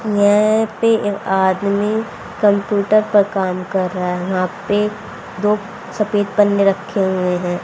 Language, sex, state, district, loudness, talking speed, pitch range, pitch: Hindi, female, Haryana, Rohtak, -17 LUFS, 140 wpm, 190-210 Hz, 205 Hz